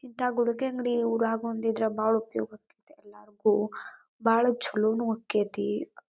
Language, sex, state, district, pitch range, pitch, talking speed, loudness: Kannada, female, Karnataka, Dharwad, 215-240 Hz, 225 Hz, 120 wpm, -28 LUFS